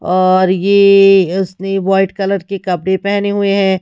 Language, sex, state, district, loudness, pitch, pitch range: Hindi, female, Haryana, Rohtak, -12 LUFS, 195 Hz, 190-200 Hz